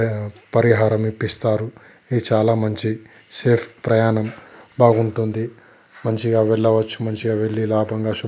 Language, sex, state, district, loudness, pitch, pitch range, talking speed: Telugu, male, Telangana, Nalgonda, -20 LUFS, 110 Hz, 110-115 Hz, 95 wpm